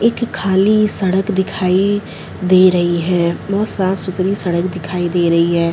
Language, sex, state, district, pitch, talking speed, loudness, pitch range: Hindi, female, Chhattisgarh, Sarguja, 185 Hz, 155 wpm, -16 LUFS, 175-200 Hz